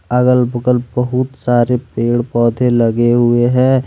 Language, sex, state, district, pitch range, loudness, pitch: Hindi, male, Jharkhand, Deoghar, 120-125 Hz, -14 LUFS, 120 Hz